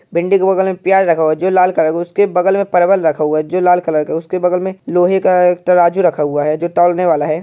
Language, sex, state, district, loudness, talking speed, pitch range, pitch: Hindi, male, Uttar Pradesh, Jyotiba Phule Nagar, -13 LUFS, 320 wpm, 160-185 Hz, 180 Hz